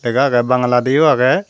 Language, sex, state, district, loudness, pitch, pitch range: Chakma, female, Tripura, Dhalai, -14 LUFS, 125 Hz, 125-135 Hz